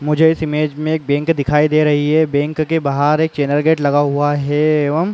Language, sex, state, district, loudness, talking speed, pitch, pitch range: Hindi, male, Uttar Pradesh, Muzaffarnagar, -15 LUFS, 245 wpm, 150 Hz, 145-155 Hz